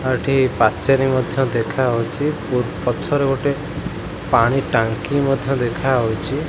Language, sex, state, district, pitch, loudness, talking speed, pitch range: Odia, male, Odisha, Khordha, 135 Hz, -19 LUFS, 110 wpm, 120-140 Hz